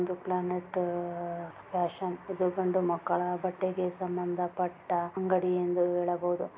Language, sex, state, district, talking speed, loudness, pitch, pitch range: Kannada, female, Karnataka, Raichur, 100 wpm, -31 LUFS, 180 Hz, 175-185 Hz